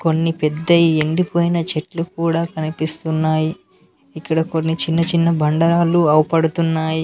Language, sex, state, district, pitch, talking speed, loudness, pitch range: Telugu, male, Telangana, Mahabubabad, 165 Hz, 100 wpm, -17 LUFS, 160-170 Hz